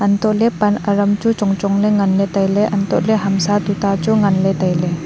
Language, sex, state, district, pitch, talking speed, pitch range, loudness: Wancho, female, Arunachal Pradesh, Longding, 200 Hz, 250 wpm, 195-210 Hz, -16 LUFS